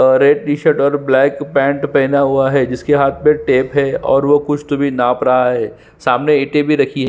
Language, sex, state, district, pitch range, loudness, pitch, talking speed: Hindi, male, Chhattisgarh, Sukma, 135-145 Hz, -14 LUFS, 140 Hz, 230 wpm